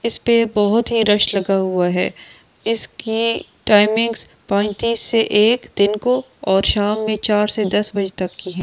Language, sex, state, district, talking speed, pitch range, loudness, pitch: Hindi, female, Delhi, New Delhi, 160 wpm, 200-230 Hz, -18 LUFS, 210 Hz